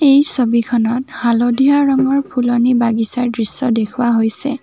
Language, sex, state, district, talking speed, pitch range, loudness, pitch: Assamese, female, Assam, Kamrup Metropolitan, 115 wpm, 235-270 Hz, -14 LUFS, 245 Hz